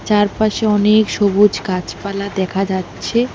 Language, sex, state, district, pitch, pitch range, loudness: Bengali, female, West Bengal, Alipurduar, 205 Hz, 195-215 Hz, -16 LUFS